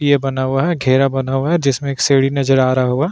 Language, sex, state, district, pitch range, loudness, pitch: Hindi, male, Uttarakhand, Tehri Garhwal, 130-140 Hz, -16 LUFS, 135 Hz